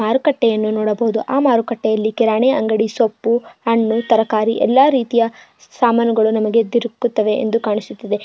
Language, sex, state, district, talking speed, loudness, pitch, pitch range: Kannada, female, Karnataka, Bijapur, 110 wpm, -16 LUFS, 230 Hz, 220-240 Hz